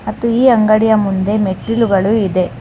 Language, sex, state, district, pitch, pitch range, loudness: Kannada, female, Karnataka, Bangalore, 215 Hz, 195-225 Hz, -13 LUFS